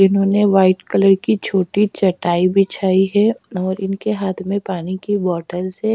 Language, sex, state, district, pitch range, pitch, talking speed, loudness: Hindi, female, Chhattisgarh, Raipur, 185-205 Hz, 195 Hz, 160 wpm, -17 LUFS